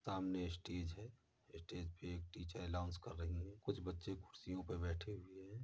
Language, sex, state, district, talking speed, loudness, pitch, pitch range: Hindi, male, Uttar Pradesh, Muzaffarnagar, 190 wpm, -48 LUFS, 90 Hz, 85-95 Hz